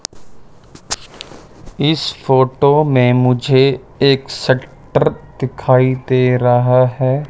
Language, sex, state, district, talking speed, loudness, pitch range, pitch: Hindi, male, Chandigarh, Chandigarh, 80 wpm, -15 LUFS, 125-140 Hz, 130 Hz